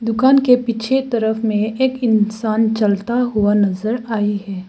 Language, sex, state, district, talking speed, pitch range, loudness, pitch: Hindi, female, Arunachal Pradesh, Lower Dibang Valley, 155 wpm, 210-240 Hz, -17 LUFS, 220 Hz